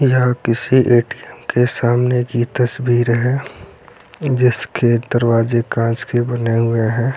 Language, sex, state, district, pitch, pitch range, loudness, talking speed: Hindi, male, Bihar, Lakhisarai, 120 Hz, 115-125 Hz, -16 LUFS, 125 wpm